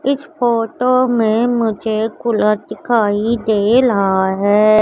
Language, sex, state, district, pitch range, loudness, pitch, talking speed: Hindi, female, Madhya Pradesh, Katni, 210-240 Hz, -15 LUFS, 225 Hz, 110 wpm